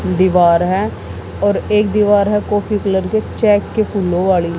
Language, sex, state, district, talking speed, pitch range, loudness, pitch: Hindi, female, Haryana, Jhajjar, 170 wpm, 180-210 Hz, -15 LUFS, 195 Hz